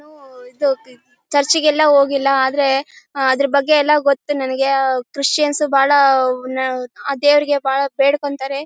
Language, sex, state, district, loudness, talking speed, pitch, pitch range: Kannada, female, Karnataka, Bellary, -16 LUFS, 130 wpm, 275 Hz, 265-290 Hz